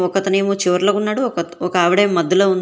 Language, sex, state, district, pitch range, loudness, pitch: Telugu, female, Telangana, Hyderabad, 180-200 Hz, -17 LUFS, 195 Hz